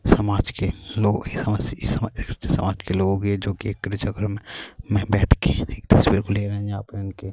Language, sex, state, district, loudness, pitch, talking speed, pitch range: Urdu, male, Bihar, Saharsa, -23 LUFS, 100 Hz, 90 wpm, 100-105 Hz